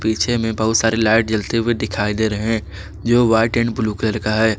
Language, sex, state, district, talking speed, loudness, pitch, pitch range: Hindi, male, Jharkhand, Garhwa, 220 wpm, -18 LUFS, 110 Hz, 105-115 Hz